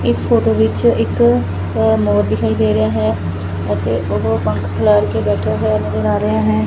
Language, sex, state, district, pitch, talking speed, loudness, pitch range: Punjabi, female, Punjab, Fazilka, 105 Hz, 180 wpm, -16 LUFS, 105-110 Hz